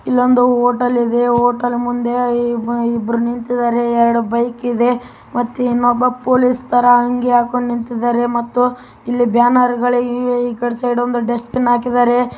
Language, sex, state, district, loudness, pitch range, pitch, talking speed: Kannada, female, Karnataka, Raichur, -15 LUFS, 240-245 Hz, 245 Hz, 125 wpm